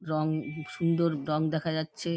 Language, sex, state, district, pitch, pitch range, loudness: Bengali, female, West Bengal, Dakshin Dinajpur, 155 Hz, 155-165 Hz, -30 LUFS